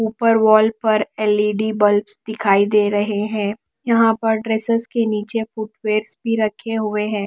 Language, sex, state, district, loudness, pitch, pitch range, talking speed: Hindi, female, Bihar, West Champaran, -18 LUFS, 215 Hz, 210-225 Hz, 165 wpm